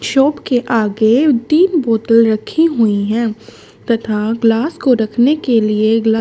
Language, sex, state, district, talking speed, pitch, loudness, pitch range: Hindi, female, Haryana, Charkhi Dadri, 145 wpm, 230 Hz, -14 LUFS, 220-260 Hz